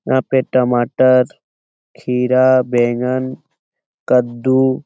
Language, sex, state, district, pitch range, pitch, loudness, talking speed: Hindi, male, Bihar, Lakhisarai, 120-130 Hz, 125 Hz, -15 LUFS, 85 wpm